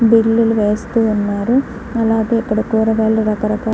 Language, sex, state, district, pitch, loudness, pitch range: Telugu, female, Andhra Pradesh, Guntur, 220 Hz, -16 LUFS, 215-230 Hz